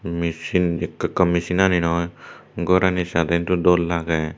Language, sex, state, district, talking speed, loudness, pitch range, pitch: Chakma, male, Tripura, Dhalai, 165 wpm, -20 LUFS, 85-90 Hz, 85 Hz